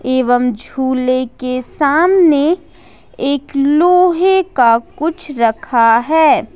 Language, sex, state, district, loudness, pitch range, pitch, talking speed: Hindi, female, Jharkhand, Ranchi, -13 LUFS, 255-330 Hz, 285 Hz, 100 wpm